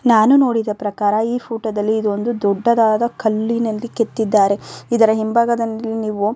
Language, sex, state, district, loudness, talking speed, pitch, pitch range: Kannada, female, Karnataka, Bellary, -17 LUFS, 140 wpm, 220 Hz, 215-235 Hz